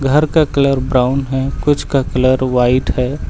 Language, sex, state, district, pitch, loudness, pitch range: Hindi, male, Uttar Pradesh, Lucknow, 135 Hz, -15 LUFS, 130-140 Hz